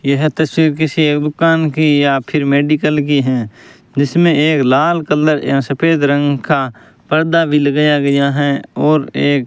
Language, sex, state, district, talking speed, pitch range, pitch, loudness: Hindi, male, Rajasthan, Bikaner, 170 wpm, 140-155 Hz, 150 Hz, -13 LUFS